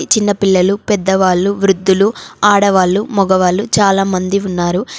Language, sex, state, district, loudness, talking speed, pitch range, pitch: Telugu, female, Telangana, Komaram Bheem, -13 LUFS, 85 wpm, 185-205 Hz, 195 Hz